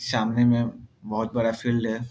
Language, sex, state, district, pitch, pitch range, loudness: Hindi, male, Bihar, Muzaffarpur, 115 Hz, 110-120 Hz, -25 LUFS